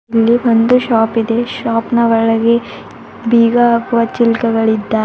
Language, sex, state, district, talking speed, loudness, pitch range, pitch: Kannada, female, Karnataka, Bidar, 105 wpm, -13 LUFS, 225-235 Hz, 230 Hz